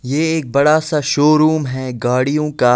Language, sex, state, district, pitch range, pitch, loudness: Hindi, male, Delhi, New Delhi, 130-155 Hz, 150 Hz, -15 LUFS